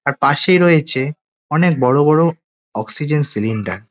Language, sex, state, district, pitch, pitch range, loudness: Bengali, male, West Bengal, Dakshin Dinajpur, 150 Hz, 130-165 Hz, -14 LUFS